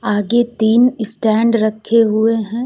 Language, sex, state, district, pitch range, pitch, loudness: Hindi, female, Uttar Pradesh, Lucknow, 220-230 Hz, 225 Hz, -14 LUFS